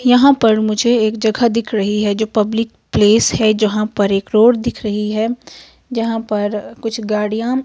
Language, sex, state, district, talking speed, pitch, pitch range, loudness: Hindi, female, Himachal Pradesh, Shimla, 180 wpm, 220 Hz, 210-230 Hz, -16 LUFS